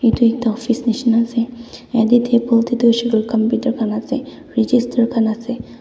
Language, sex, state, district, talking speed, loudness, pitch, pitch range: Nagamese, female, Nagaland, Dimapur, 125 wpm, -17 LUFS, 235 Hz, 230-245 Hz